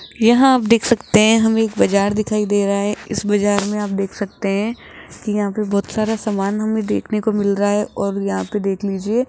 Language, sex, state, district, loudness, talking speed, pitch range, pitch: Hindi, female, Rajasthan, Jaipur, -18 LUFS, 240 wpm, 200-220 Hz, 210 Hz